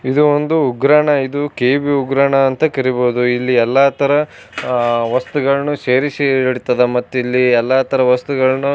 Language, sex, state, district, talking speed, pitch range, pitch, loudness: Kannada, male, Karnataka, Bijapur, 135 wpm, 125-140 Hz, 135 Hz, -15 LUFS